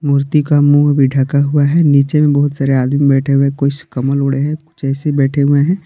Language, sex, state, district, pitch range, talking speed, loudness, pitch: Hindi, male, Jharkhand, Palamu, 140-145 Hz, 255 wpm, -13 LUFS, 140 Hz